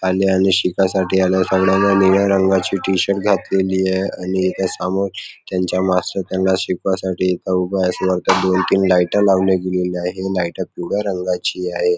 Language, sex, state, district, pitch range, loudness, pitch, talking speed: Marathi, male, Maharashtra, Nagpur, 90-95 Hz, -17 LUFS, 95 Hz, 160 wpm